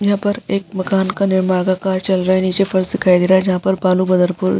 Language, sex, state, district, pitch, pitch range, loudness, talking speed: Hindi, female, Uttar Pradesh, Jyotiba Phule Nagar, 185 Hz, 185-195 Hz, -16 LUFS, 285 wpm